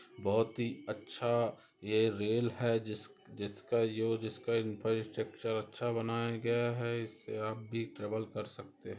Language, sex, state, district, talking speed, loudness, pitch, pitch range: Hindi, female, Rajasthan, Nagaur, 145 wpm, -36 LUFS, 115 Hz, 110-115 Hz